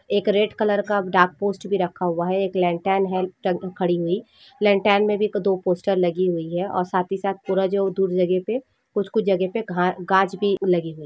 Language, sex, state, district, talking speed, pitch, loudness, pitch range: Hindi, female, Jharkhand, Jamtara, 215 wpm, 190 Hz, -22 LUFS, 180-205 Hz